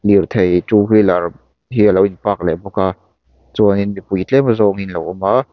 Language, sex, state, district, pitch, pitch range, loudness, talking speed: Mizo, male, Mizoram, Aizawl, 100 Hz, 95-105 Hz, -15 LUFS, 185 wpm